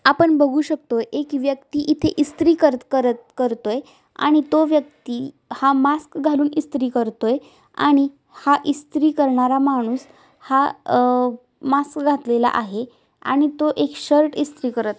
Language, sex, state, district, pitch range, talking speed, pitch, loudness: Marathi, female, Maharashtra, Aurangabad, 250-295 Hz, 135 wpm, 280 Hz, -20 LUFS